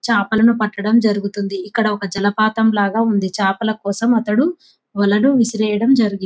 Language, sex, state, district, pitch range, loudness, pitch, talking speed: Telugu, female, Telangana, Nalgonda, 200-230 Hz, -17 LUFS, 215 Hz, 135 wpm